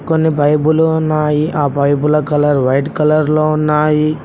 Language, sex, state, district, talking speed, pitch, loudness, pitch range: Telugu, male, Telangana, Mahabubabad, 140 wpm, 150 Hz, -13 LUFS, 145-155 Hz